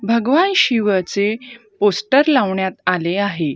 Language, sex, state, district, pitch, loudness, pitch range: Marathi, female, Maharashtra, Gondia, 205 Hz, -17 LUFS, 190-240 Hz